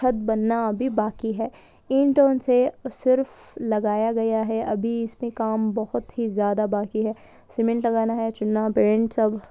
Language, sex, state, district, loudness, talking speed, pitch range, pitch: Hindi, female, Chhattisgarh, Balrampur, -23 LUFS, 160 wpm, 215-245 Hz, 225 Hz